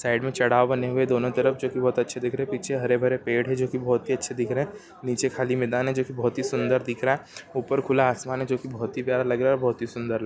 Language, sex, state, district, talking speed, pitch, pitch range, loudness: Hindi, male, Maharashtra, Solapur, 325 wpm, 125 Hz, 125-130 Hz, -25 LUFS